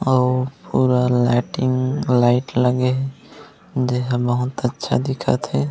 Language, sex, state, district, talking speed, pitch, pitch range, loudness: Chhattisgarhi, male, Chhattisgarh, Raigarh, 115 wpm, 125 Hz, 125-130 Hz, -20 LUFS